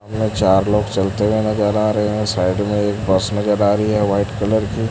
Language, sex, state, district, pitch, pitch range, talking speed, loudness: Hindi, male, Chhattisgarh, Raipur, 105 Hz, 100-105 Hz, 245 wpm, -17 LUFS